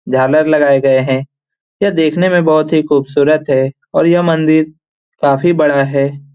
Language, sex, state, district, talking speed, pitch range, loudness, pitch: Hindi, male, Bihar, Lakhisarai, 160 wpm, 140-155 Hz, -12 LUFS, 150 Hz